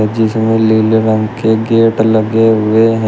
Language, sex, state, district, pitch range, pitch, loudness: Hindi, male, Uttar Pradesh, Shamli, 110-115 Hz, 110 Hz, -11 LUFS